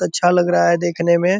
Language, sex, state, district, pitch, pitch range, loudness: Hindi, male, Bihar, Purnia, 175 Hz, 170-175 Hz, -16 LUFS